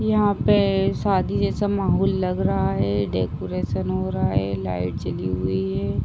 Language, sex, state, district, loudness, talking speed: Hindi, female, Uttar Pradesh, Ghazipur, -22 LUFS, 160 wpm